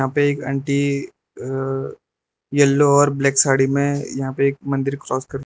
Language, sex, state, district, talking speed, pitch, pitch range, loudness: Hindi, male, Arunachal Pradesh, Lower Dibang Valley, 155 wpm, 140 Hz, 135-140 Hz, -19 LUFS